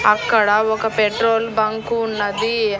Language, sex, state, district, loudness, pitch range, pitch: Telugu, female, Andhra Pradesh, Annamaya, -18 LUFS, 210-225 Hz, 220 Hz